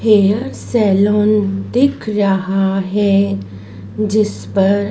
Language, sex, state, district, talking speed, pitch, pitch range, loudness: Hindi, male, Madhya Pradesh, Dhar, 85 wpm, 200 Hz, 195-210 Hz, -15 LUFS